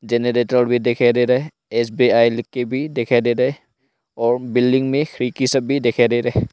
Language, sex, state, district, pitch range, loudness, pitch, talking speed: Hindi, male, Arunachal Pradesh, Longding, 120-130 Hz, -18 LUFS, 120 Hz, 195 wpm